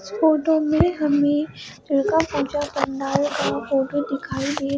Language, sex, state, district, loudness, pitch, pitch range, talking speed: Hindi, male, Bihar, Katihar, -21 LUFS, 290 Hz, 275-305 Hz, 100 wpm